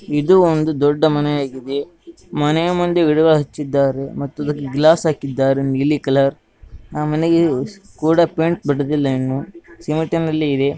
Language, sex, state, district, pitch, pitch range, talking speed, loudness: Kannada, male, Karnataka, Gulbarga, 150 Hz, 140-165 Hz, 130 wpm, -17 LUFS